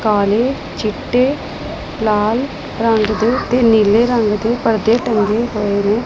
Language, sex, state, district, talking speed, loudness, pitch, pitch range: Punjabi, female, Punjab, Pathankot, 130 wpm, -16 LUFS, 225 Hz, 215-240 Hz